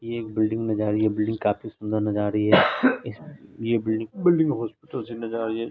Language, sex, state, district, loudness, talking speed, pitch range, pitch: Hindi, male, Bihar, Saharsa, -24 LUFS, 210 wpm, 105-115 Hz, 110 Hz